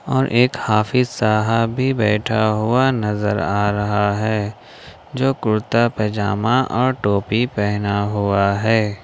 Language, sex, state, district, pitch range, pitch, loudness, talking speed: Hindi, male, Jharkhand, Ranchi, 105-120 Hz, 110 Hz, -18 LUFS, 125 wpm